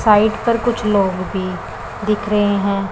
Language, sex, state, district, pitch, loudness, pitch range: Hindi, male, Punjab, Pathankot, 205 Hz, -18 LUFS, 195-215 Hz